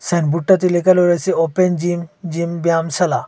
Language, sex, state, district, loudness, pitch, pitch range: Bengali, male, Assam, Hailakandi, -16 LUFS, 175 Hz, 165-180 Hz